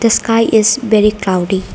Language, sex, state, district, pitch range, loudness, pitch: English, female, Arunachal Pradesh, Lower Dibang Valley, 200-230 Hz, -12 LUFS, 220 Hz